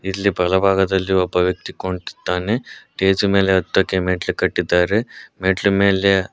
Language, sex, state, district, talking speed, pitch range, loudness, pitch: Kannada, male, Karnataka, Koppal, 125 wpm, 90-100 Hz, -18 LUFS, 95 Hz